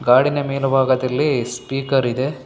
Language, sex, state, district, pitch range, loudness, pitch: Kannada, male, Karnataka, Bellary, 125-135 Hz, -19 LUFS, 130 Hz